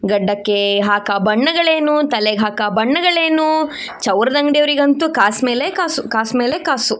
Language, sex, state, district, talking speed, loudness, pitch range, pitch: Kannada, female, Karnataka, Shimoga, 120 wpm, -15 LUFS, 215-305 Hz, 255 Hz